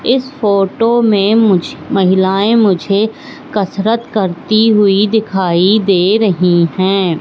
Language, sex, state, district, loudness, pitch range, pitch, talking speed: Hindi, female, Madhya Pradesh, Katni, -12 LUFS, 190-220 Hz, 200 Hz, 110 wpm